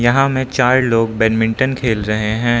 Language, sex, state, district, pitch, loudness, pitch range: Hindi, male, Arunachal Pradesh, Lower Dibang Valley, 120 Hz, -16 LUFS, 110-130 Hz